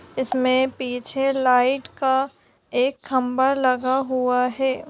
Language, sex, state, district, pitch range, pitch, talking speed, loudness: Hindi, female, Bihar, Gopalganj, 255-265 Hz, 260 Hz, 110 wpm, -21 LUFS